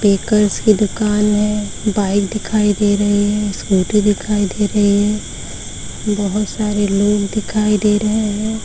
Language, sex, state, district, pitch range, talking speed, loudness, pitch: Hindi, female, Uttar Pradesh, Varanasi, 200-210 Hz, 150 wpm, -16 LUFS, 210 Hz